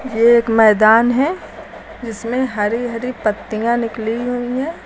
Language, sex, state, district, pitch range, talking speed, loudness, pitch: Hindi, female, Uttar Pradesh, Lucknow, 225-250 Hz, 135 wpm, -16 LUFS, 235 Hz